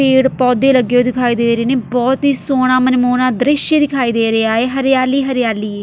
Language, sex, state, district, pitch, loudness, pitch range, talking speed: Punjabi, female, Delhi, New Delhi, 255 Hz, -14 LUFS, 245-265 Hz, 215 wpm